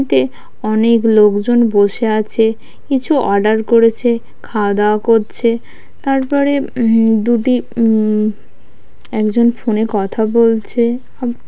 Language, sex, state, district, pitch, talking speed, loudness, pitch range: Bengali, female, West Bengal, Purulia, 225 Hz, 105 wpm, -14 LUFS, 215-240 Hz